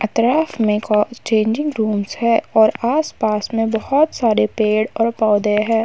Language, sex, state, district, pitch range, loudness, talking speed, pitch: Hindi, female, Uttar Pradesh, Muzaffarnagar, 215-240 Hz, -17 LUFS, 155 wpm, 225 Hz